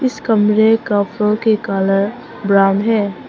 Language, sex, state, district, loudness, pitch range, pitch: Hindi, female, Arunachal Pradesh, Papum Pare, -15 LUFS, 195-220 Hz, 210 Hz